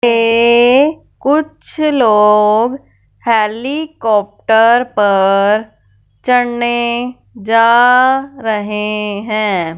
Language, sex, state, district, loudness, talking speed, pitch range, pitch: Hindi, female, Punjab, Fazilka, -12 LUFS, 55 wpm, 210-250 Hz, 230 Hz